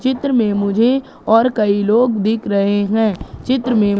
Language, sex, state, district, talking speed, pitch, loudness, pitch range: Hindi, female, Madhya Pradesh, Katni, 165 wpm, 225 Hz, -16 LUFS, 205-250 Hz